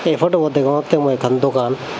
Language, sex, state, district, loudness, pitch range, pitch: Chakma, male, Tripura, Dhalai, -17 LUFS, 130-160 Hz, 140 Hz